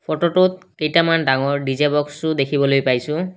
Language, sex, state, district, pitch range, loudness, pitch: Assamese, male, Assam, Kamrup Metropolitan, 140-165 Hz, -18 LUFS, 150 Hz